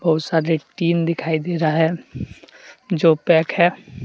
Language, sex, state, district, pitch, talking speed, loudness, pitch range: Hindi, male, Jharkhand, Deoghar, 165 Hz, 150 wpm, -19 LUFS, 160-170 Hz